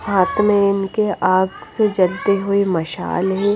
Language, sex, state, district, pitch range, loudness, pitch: Hindi, female, Himachal Pradesh, Shimla, 185-205 Hz, -18 LUFS, 195 Hz